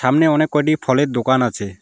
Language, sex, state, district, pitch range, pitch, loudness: Bengali, male, West Bengal, Alipurduar, 125-155 Hz, 130 Hz, -17 LUFS